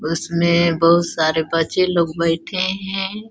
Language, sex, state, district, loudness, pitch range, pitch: Hindi, female, Chhattisgarh, Balrampur, -18 LUFS, 165-185 Hz, 170 Hz